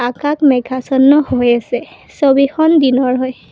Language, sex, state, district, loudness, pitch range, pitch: Assamese, female, Assam, Kamrup Metropolitan, -13 LUFS, 250-295 Hz, 265 Hz